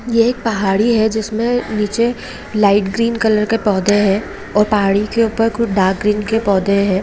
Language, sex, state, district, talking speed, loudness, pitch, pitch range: Hindi, female, Bihar, Madhepura, 180 wpm, -16 LUFS, 215 Hz, 200-225 Hz